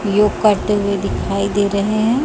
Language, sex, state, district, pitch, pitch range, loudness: Hindi, female, Chhattisgarh, Raipur, 205 Hz, 200-210 Hz, -17 LUFS